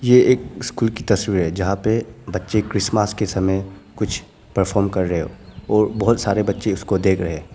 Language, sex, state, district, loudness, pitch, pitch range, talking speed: Hindi, male, Arunachal Pradesh, Papum Pare, -20 LUFS, 100 Hz, 95-110 Hz, 200 wpm